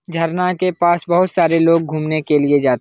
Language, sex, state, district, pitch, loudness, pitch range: Hindi, male, Bihar, Lakhisarai, 165 Hz, -16 LUFS, 155-175 Hz